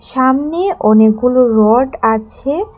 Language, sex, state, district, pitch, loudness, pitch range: Bengali, female, Tripura, West Tripura, 250 Hz, -12 LUFS, 220-290 Hz